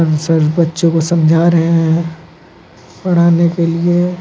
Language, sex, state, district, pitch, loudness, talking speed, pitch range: Hindi, male, Uttar Pradesh, Lucknow, 170 Hz, -12 LUFS, 130 wpm, 165-170 Hz